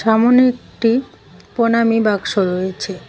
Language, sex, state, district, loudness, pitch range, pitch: Bengali, female, West Bengal, Cooch Behar, -16 LUFS, 195-235 Hz, 225 Hz